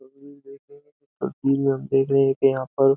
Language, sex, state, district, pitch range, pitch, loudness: Hindi, male, Uttar Pradesh, Jyotiba Phule Nagar, 135-140 Hz, 135 Hz, -22 LUFS